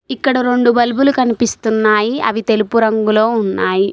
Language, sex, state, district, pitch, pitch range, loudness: Telugu, female, Telangana, Mahabubabad, 230 Hz, 215-245 Hz, -14 LUFS